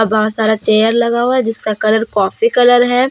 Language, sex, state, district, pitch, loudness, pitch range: Hindi, female, Jharkhand, Deoghar, 225 Hz, -13 LUFS, 215-245 Hz